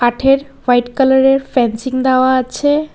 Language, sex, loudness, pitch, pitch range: Bengali, female, -14 LUFS, 260 Hz, 250-270 Hz